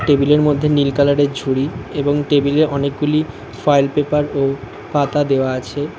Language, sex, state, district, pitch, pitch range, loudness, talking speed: Bengali, male, West Bengal, Alipurduar, 145 Hz, 140-150 Hz, -17 LUFS, 140 wpm